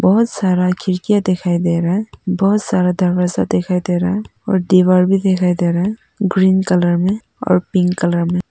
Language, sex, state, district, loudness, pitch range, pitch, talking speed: Hindi, female, Arunachal Pradesh, Papum Pare, -16 LUFS, 180-195 Hz, 185 Hz, 185 wpm